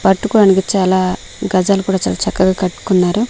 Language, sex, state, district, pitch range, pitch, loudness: Telugu, female, Andhra Pradesh, Manyam, 185-200 Hz, 190 Hz, -14 LUFS